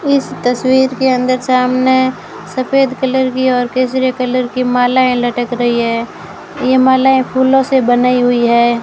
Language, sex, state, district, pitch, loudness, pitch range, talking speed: Hindi, female, Rajasthan, Bikaner, 255 Hz, -13 LUFS, 245-260 Hz, 155 wpm